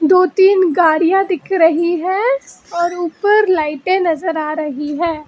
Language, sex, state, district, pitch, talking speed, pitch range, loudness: Hindi, female, Karnataka, Bangalore, 345 Hz, 150 wpm, 320-375 Hz, -15 LUFS